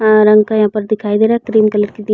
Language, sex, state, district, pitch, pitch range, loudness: Hindi, female, Chhattisgarh, Balrampur, 215 Hz, 210-220 Hz, -12 LUFS